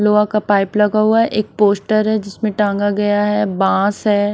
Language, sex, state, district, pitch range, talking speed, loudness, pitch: Hindi, female, Odisha, Nuapada, 205-215 Hz, 195 wpm, -16 LUFS, 210 Hz